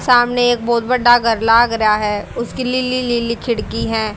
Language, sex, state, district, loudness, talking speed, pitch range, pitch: Hindi, female, Haryana, Jhajjar, -16 LUFS, 185 wpm, 225-245 Hz, 235 Hz